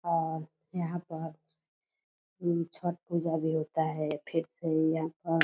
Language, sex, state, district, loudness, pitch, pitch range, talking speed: Hindi, female, Bihar, Purnia, -33 LUFS, 165 Hz, 160-170 Hz, 155 wpm